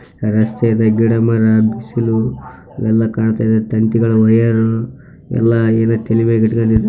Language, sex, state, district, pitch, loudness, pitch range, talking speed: Kannada, male, Karnataka, Raichur, 115 Hz, -14 LUFS, 110-115 Hz, 105 wpm